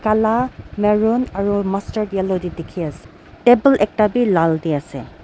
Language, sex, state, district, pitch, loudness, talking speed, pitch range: Nagamese, female, Nagaland, Dimapur, 205 Hz, -18 LUFS, 150 wpm, 175-220 Hz